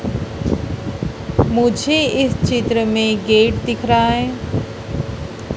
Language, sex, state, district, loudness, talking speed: Hindi, female, Madhya Pradesh, Dhar, -18 LUFS, 85 wpm